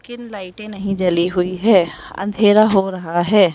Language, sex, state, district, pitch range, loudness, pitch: Hindi, female, Rajasthan, Jaipur, 180-210 Hz, -16 LUFS, 195 Hz